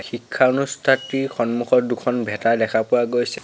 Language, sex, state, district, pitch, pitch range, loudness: Assamese, male, Assam, Sonitpur, 120 Hz, 120-130 Hz, -20 LUFS